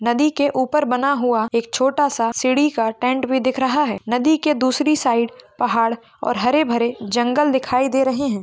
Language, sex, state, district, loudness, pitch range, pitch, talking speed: Hindi, female, Maharashtra, Dhule, -19 LUFS, 235-285 Hz, 255 Hz, 200 wpm